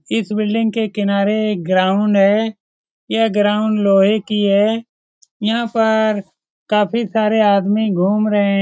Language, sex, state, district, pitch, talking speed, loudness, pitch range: Hindi, male, Bihar, Supaul, 210 Hz, 140 wpm, -16 LUFS, 200-220 Hz